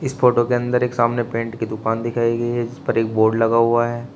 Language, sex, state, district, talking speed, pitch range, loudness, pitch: Hindi, male, Uttar Pradesh, Shamli, 260 wpm, 115-120 Hz, -19 LUFS, 120 Hz